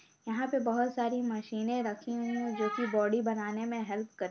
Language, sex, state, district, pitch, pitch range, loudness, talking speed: Hindi, female, Uttar Pradesh, Etah, 230 Hz, 215-240 Hz, -33 LUFS, 210 wpm